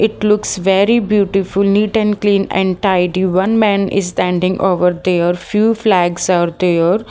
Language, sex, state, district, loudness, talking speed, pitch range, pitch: English, female, Haryana, Jhajjar, -14 LUFS, 160 wpm, 180-210 Hz, 195 Hz